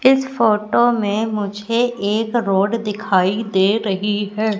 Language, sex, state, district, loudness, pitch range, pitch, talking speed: Hindi, female, Madhya Pradesh, Katni, -18 LUFS, 205-230 Hz, 215 Hz, 130 wpm